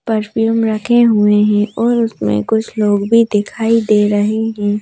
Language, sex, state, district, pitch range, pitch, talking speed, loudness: Hindi, female, Madhya Pradesh, Bhopal, 210-225 Hz, 215 Hz, 160 wpm, -14 LUFS